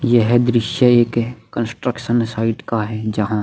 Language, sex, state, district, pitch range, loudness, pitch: Hindi, male, Chhattisgarh, Korba, 110-120 Hz, -18 LUFS, 115 Hz